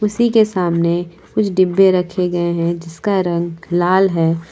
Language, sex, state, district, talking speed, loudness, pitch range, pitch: Hindi, female, Jharkhand, Palamu, 160 wpm, -16 LUFS, 170-195 Hz, 175 Hz